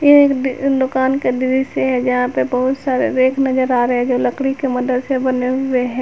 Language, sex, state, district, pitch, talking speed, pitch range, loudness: Hindi, female, Jharkhand, Garhwa, 260 Hz, 230 wpm, 250-265 Hz, -16 LUFS